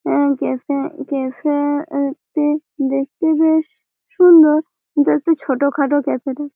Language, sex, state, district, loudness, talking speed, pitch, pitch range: Bengali, female, West Bengal, Malda, -17 LUFS, 120 wpm, 290 Hz, 280-315 Hz